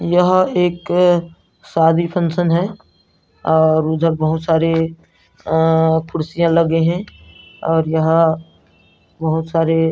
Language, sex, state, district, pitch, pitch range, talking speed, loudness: Hindi, male, Chhattisgarh, Narayanpur, 165 Hz, 160-170 Hz, 105 wpm, -16 LUFS